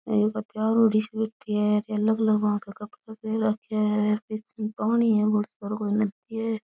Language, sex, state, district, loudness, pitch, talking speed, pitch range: Rajasthani, female, Rajasthan, Churu, -25 LUFS, 215 Hz, 215 wpm, 210-220 Hz